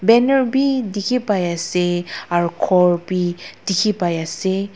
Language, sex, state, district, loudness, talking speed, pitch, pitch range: Nagamese, female, Nagaland, Dimapur, -19 LUFS, 140 wpm, 185 Hz, 175-220 Hz